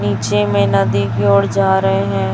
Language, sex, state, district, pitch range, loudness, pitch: Hindi, female, Chhattisgarh, Raipur, 100-105 Hz, -15 LUFS, 100 Hz